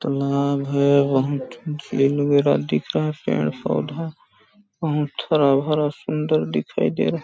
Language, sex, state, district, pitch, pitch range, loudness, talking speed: Hindi, male, Chhattisgarh, Balrampur, 140 Hz, 140-150 Hz, -21 LUFS, 150 wpm